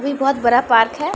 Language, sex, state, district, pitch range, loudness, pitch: Maithili, female, Bihar, Samastipur, 235-280 Hz, -15 LUFS, 265 Hz